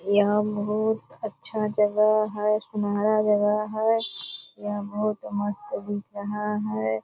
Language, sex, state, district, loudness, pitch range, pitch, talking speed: Hindi, female, Bihar, Purnia, -26 LUFS, 205-215 Hz, 210 Hz, 120 wpm